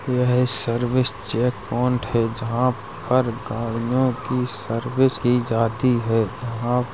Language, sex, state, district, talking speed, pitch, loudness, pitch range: Hindi, male, Uttar Pradesh, Jalaun, 130 wpm, 120 Hz, -22 LUFS, 115-125 Hz